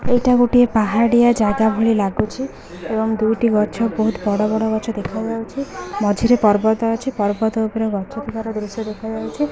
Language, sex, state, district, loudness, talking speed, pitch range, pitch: Odia, female, Odisha, Khordha, -18 LUFS, 150 wpm, 210-230 Hz, 220 Hz